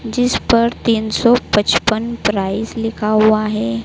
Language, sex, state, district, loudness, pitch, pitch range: Hindi, female, Madhya Pradesh, Dhar, -16 LUFS, 220 Hz, 210-230 Hz